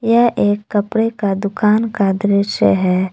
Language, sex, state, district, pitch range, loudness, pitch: Hindi, female, Jharkhand, Palamu, 195-225 Hz, -16 LUFS, 205 Hz